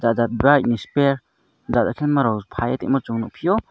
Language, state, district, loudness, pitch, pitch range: Kokborok, Tripura, Dhalai, -20 LUFS, 135 Hz, 115-140 Hz